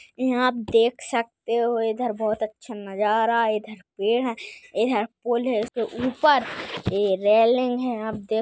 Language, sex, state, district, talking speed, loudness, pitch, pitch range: Hindi, female, Maharashtra, Pune, 165 wpm, -23 LUFS, 230 Hz, 215-245 Hz